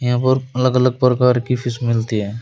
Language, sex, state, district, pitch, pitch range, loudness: Hindi, male, Uttar Pradesh, Shamli, 125 Hz, 120-125 Hz, -17 LUFS